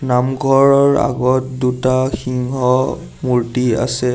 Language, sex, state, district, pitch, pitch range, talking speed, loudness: Assamese, male, Assam, Sonitpur, 130 Hz, 125-130 Hz, 85 wpm, -16 LUFS